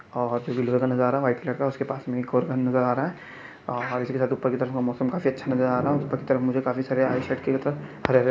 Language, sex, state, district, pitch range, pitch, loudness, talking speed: Hindi, male, Chhattisgarh, Bastar, 125-135 Hz, 130 Hz, -25 LUFS, 225 wpm